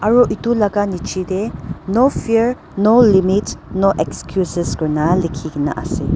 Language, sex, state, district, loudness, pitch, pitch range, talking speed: Nagamese, female, Nagaland, Dimapur, -17 LUFS, 195 Hz, 175-220 Hz, 125 wpm